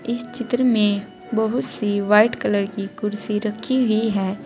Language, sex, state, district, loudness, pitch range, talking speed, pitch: Hindi, female, Uttar Pradesh, Saharanpur, -21 LUFS, 205-235 Hz, 160 wpm, 215 Hz